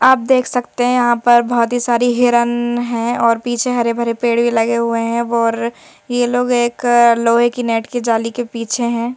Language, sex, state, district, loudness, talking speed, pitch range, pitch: Hindi, female, Madhya Pradesh, Bhopal, -15 LUFS, 210 wpm, 235-245 Hz, 240 Hz